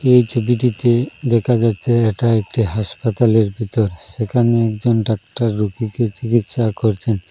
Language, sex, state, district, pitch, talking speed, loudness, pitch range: Bengali, male, Assam, Hailakandi, 115 Hz, 115 wpm, -17 LUFS, 110-120 Hz